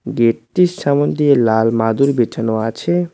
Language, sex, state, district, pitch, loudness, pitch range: Bengali, male, West Bengal, Cooch Behar, 120 Hz, -16 LUFS, 115-145 Hz